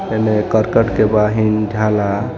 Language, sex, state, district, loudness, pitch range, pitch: Bhojpuri, male, Jharkhand, Palamu, -15 LUFS, 105-110 Hz, 105 Hz